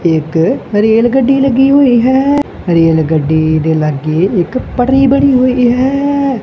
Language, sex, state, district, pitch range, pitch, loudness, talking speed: Punjabi, male, Punjab, Kapurthala, 160-270 Hz, 240 Hz, -11 LUFS, 120 wpm